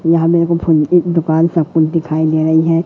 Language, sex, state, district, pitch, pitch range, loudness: Hindi, female, Madhya Pradesh, Katni, 165 Hz, 160-170 Hz, -13 LUFS